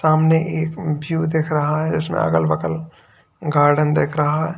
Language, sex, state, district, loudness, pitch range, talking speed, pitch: Hindi, male, Uttar Pradesh, Lalitpur, -19 LUFS, 145-160 Hz, 170 wpm, 155 Hz